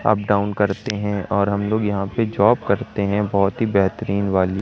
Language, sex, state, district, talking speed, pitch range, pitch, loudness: Hindi, male, Madhya Pradesh, Katni, 210 wpm, 100-105 Hz, 100 Hz, -20 LUFS